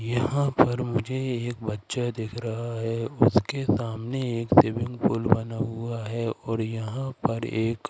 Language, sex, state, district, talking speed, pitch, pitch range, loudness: Hindi, male, Madhya Pradesh, Katni, 160 wpm, 115 Hz, 115-125 Hz, -26 LUFS